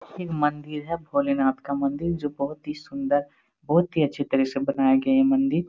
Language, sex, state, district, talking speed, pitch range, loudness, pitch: Hindi, male, Bihar, Jamui, 210 wpm, 140-170 Hz, -24 LUFS, 150 Hz